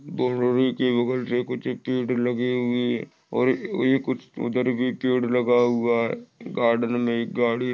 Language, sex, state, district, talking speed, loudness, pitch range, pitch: Hindi, male, Maharashtra, Sindhudurg, 110 wpm, -24 LUFS, 120-125 Hz, 125 Hz